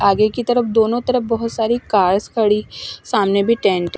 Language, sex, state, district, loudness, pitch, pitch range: Hindi, male, Punjab, Fazilka, -17 LUFS, 220 Hz, 200-235 Hz